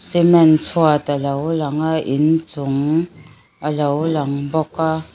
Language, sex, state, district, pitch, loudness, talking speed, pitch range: Mizo, female, Mizoram, Aizawl, 155 Hz, -17 LUFS, 150 wpm, 145-160 Hz